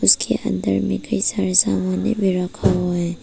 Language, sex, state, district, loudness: Hindi, female, Arunachal Pradesh, Papum Pare, -19 LUFS